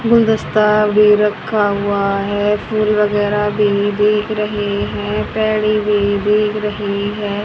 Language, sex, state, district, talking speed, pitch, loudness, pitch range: Hindi, female, Haryana, Charkhi Dadri, 135 wpm, 210 Hz, -15 LUFS, 205-210 Hz